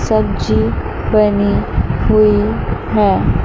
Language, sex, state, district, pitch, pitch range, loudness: Hindi, male, Chandigarh, Chandigarh, 110 Hz, 100-115 Hz, -15 LUFS